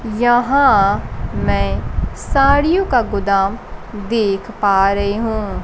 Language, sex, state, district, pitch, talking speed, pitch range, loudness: Hindi, female, Bihar, Kaimur, 210 Hz, 95 wpm, 195-240 Hz, -16 LUFS